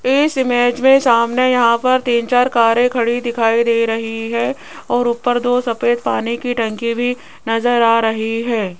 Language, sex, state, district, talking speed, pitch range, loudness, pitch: Hindi, female, Rajasthan, Jaipur, 175 wpm, 230-245 Hz, -16 LUFS, 235 Hz